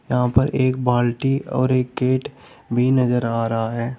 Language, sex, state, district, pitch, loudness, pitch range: Hindi, male, Uttar Pradesh, Shamli, 125 Hz, -20 LUFS, 120-130 Hz